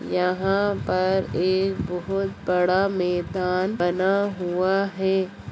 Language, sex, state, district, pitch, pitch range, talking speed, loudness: Hindi, female, Bihar, Jamui, 185 Hz, 180-195 Hz, 100 wpm, -23 LUFS